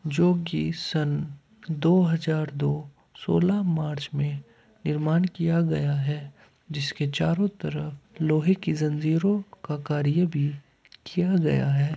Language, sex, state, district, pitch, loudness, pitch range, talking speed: Hindi, male, Uttar Pradesh, Hamirpur, 155 Hz, -26 LUFS, 145-170 Hz, 125 wpm